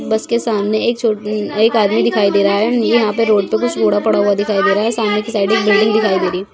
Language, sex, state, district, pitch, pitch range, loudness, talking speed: Hindi, female, Chhattisgarh, Raigarh, 215 Hz, 205-220 Hz, -15 LUFS, 300 wpm